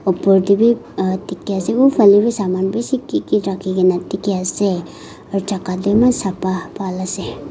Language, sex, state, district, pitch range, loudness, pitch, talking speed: Nagamese, female, Nagaland, Kohima, 185-205 Hz, -17 LUFS, 195 Hz, 170 wpm